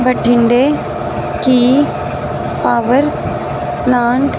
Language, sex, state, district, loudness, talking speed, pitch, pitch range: Hindi, female, Punjab, Fazilka, -14 LUFS, 70 wpm, 250 Hz, 240-270 Hz